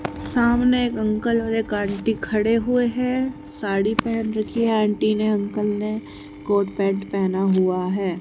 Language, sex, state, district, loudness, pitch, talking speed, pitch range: Hindi, female, Haryana, Charkhi Dadri, -22 LUFS, 215 Hz, 145 wpm, 200-230 Hz